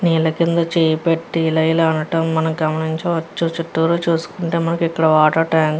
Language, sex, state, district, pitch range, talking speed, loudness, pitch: Telugu, female, Andhra Pradesh, Guntur, 160-170 Hz, 155 wpm, -18 LUFS, 165 Hz